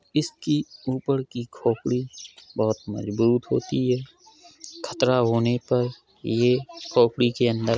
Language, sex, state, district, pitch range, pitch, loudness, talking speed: Hindi, male, Uttar Pradesh, Jalaun, 115-140 Hz, 125 Hz, -24 LUFS, 125 wpm